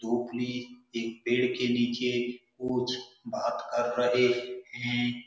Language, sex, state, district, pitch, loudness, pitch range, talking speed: Hindi, male, Bihar, Saran, 125 Hz, -30 LUFS, 120-125 Hz, 115 wpm